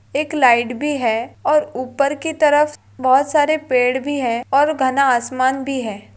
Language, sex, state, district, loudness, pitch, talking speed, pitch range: Hindi, female, Maharashtra, Pune, -17 LUFS, 270 Hz, 175 wpm, 250-295 Hz